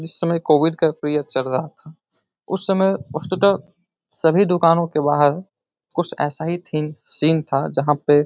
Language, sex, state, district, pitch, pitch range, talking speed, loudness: Hindi, male, Uttar Pradesh, Etah, 160 Hz, 150-175 Hz, 175 wpm, -20 LUFS